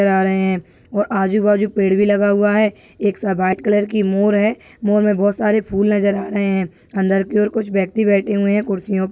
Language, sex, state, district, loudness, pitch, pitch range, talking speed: Hindi, female, Maharashtra, Nagpur, -17 LUFS, 205 Hz, 195-210 Hz, 215 wpm